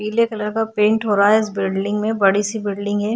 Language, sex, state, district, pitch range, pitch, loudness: Hindi, female, Maharashtra, Chandrapur, 205-220 Hz, 210 Hz, -18 LUFS